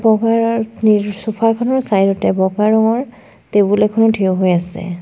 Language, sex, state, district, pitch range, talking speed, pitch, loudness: Assamese, female, Assam, Sonitpur, 195-225 Hz, 130 wpm, 215 Hz, -15 LUFS